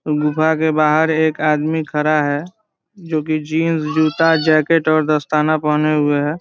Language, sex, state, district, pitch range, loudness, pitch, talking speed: Hindi, male, Bihar, Saran, 150-160 Hz, -16 LUFS, 155 Hz, 170 wpm